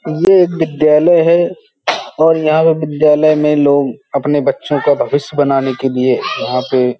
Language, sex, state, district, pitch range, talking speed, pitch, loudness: Hindi, male, Uttar Pradesh, Hamirpur, 140-160 Hz, 170 wpm, 150 Hz, -13 LUFS